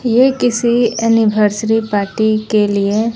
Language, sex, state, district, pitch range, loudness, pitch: Hindi, female, Bihar, West Champaran, 210-235 Hz, -14 LUFS, 220 Hz